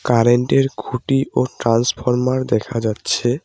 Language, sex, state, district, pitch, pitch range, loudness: Bengali, male, West Bengal, Cooch Behar, 125 Hz, 115-130 Hz, -18 LUFS